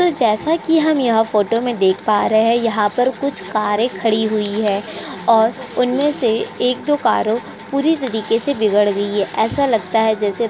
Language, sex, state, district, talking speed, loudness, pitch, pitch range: Hindi, female, Uttar Pradesh, Jyotiba Phule Nagar, 200 wpm, -16 LUFS, 225 Hz, 215-255 Hz